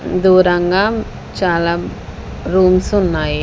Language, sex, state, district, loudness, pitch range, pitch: Telugu, female, Andhra Pradesh, Sri Satya Sai, -14 LUFS, 175-190 Hz, 185 Hz